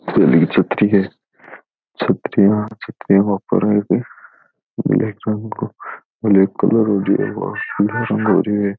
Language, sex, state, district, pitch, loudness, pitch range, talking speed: Rajasthani, male, Rajasthan, Churu, 105 Hz, -17 LUFS, 100-105 Hz, 125 wpm